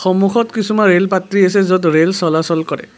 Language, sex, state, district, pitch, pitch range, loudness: Assamese, male, Assam, Kamrup Metropolitan, 185 Hz, 165-200 Hz, -14 LUFS